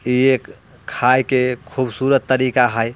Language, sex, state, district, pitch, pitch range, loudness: Bhojpuri, male, Bihar, Muzaffarpur, 130 Hz, 125-130 Hz, -17 LUFS